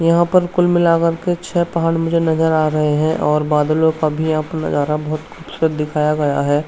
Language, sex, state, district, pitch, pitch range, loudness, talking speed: Hindi, male, Uttarakhand, Tehri Garhwal, 160 Hz, 150-170 Hz, -17 LUFS, 215 wpm